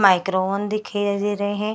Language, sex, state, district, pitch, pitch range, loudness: Hindi, female, Bihar, Gaya, 205 Hz, 195-205 Hz, -22 LUFS